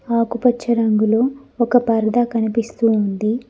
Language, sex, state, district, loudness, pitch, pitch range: Telugu, female, Telangana, Mahabubabad, -18 LUFS, 230 Hz, 220-240 Hz